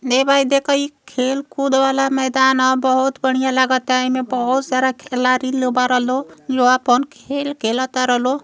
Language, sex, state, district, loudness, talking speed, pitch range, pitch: Bhojpuri, female, Uttar Pradesh, Gorakhpur, -17 LUFS, 165 wpm, 255-270 Hz, 260 Hz